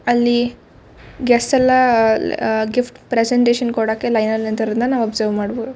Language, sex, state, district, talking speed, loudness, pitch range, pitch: Kannada, female, Karnataka, Shimoga, 135 wpm, -17 LUFS, 220-245 Hz, 240 Hz